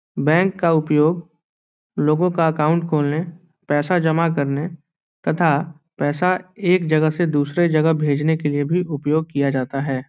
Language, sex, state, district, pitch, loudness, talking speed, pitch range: Hindi, male, Bihar, Saran, 160 Hz, -19 LUFS, 150 wpm, 145-170 Hz